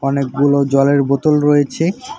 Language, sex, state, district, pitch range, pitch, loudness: Bengali, male, West Bengal, Alipurduar, 140-150 Hz, 140 Hz, -15 LUFS